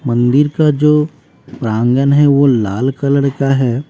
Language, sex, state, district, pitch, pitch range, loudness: Hindi, female, Bihar, West Champaran, 140 Hz, 125-145 Hz, -13 LUFS